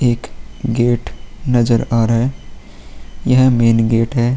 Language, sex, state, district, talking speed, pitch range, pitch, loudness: Hindi, male, Uttar Pradesh, Muzaffarnagar, 135 wpm, 115-125 Hz, 120 Hz, -15 LUFS